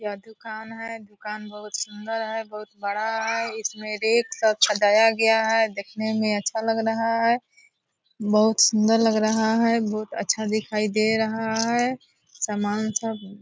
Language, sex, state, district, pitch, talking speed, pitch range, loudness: Hindi, female, Bihar, Purnia, 220 Hz, 160 wpm, 210-225 Hz, -23 LUFS